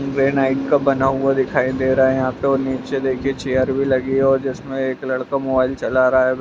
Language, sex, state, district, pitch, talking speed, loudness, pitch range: Hindi, male, Bihar, Jamui, 135 Hz, 245 wpm, -18 LUFS, 130-135 Hz